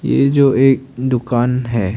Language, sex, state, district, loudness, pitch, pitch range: Hindi, male, Arunachal Pradesh, Longding, -15 LUFS, 125 Hz, 120-135 Hz